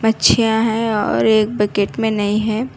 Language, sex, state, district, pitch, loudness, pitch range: Hindi, female, Karnataka, Koppal, 220 Hz, -16 LUFS, 210-225 Hz